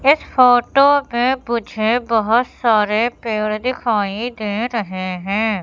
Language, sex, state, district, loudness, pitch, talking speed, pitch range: Hindi, female, Madhya Pradesh, Katni, -17 LUFS, 230 Hz, 115 wpm, 215-245 Hz